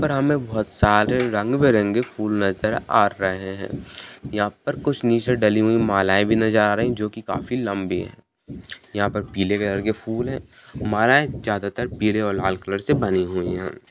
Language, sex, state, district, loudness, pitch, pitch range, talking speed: Hindi, male, Bihar, Kishanganj, -21 LUFS, 105 Hz, 100-120 Hz, 220 wpm